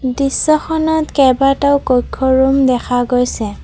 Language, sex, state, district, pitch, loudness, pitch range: Assamese, female, Assam, Kamrup Metropolitan, 265 Hz, -14 LUFS, 250-280 Hz